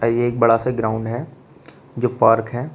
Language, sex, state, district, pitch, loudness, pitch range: Hindi, male, Uttar Pradesh, Shamli, 120 Hz, -19 LUFS, 115-125 Hz